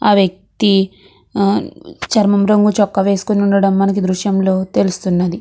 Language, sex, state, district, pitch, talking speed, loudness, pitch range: Telugu, female, Andhra Pradesh, Krishna, 195 Hz, 110 wpm, -15 LUFS, 190-200 Hz